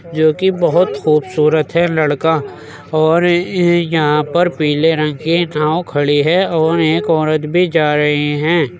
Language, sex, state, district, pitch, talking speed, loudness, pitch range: Hindi, male, Uttar Pradesh, Jyotiba Phule Nagar, 160 Hz, 150 wpm, -14 LUFS, 150-170 Hz